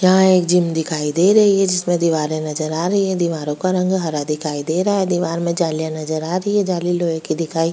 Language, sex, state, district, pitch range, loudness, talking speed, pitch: Hindi, female, Bihar, Kishanganj, 155-185 Hz, -18 LUFS, 255 wpm, 170 Hz